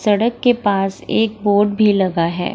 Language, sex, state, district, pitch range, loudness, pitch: Hindi, female, Bihar, Gaya, 195-215 Hz, -16 LUFS, 205 Hz